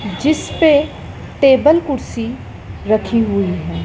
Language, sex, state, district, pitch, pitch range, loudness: Hindi, female, Madhya Pradesh, Dhar, 235 Hz, 205-295 Hz, -15 LUFS